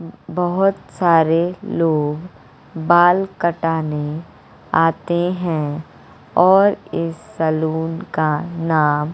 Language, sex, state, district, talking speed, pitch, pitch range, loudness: Hindi, female, Bihar, West Champaran, 80 wpm, 165 Hz, 155-175 Hz, -18 LUFS